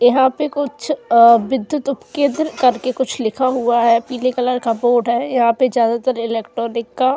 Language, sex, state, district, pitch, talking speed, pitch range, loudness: Hindi, female, Uttar Pradesh, Jyotiba Phule Nagar, 250 Hz, 190 wpm, 235-265 Hz, -17 LUFS